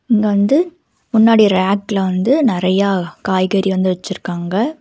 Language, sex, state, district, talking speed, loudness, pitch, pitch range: Tamil, female, Karnataka, Bangalore, 110 wpm, -15 LUFS, 195 Hz, 185-225 Hz